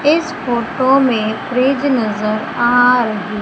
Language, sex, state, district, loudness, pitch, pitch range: Hindi, female, Madhya Pradesh, Umaria, -15 LUFS, 245 Hz, 220-265 Hz